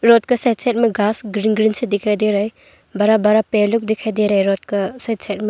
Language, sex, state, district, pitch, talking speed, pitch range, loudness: Hindi, female, Arunachal Pradesh, Longding, 215 Hz, 275 wpm, 210-225 Hz, -17 LUFS